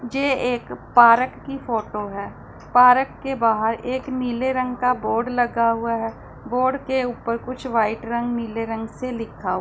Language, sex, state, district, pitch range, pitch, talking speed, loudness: Hindi, female, Punjab, Pathankot, 225-255 Hz, 240 Hz, 170 wpm, -21 LUFS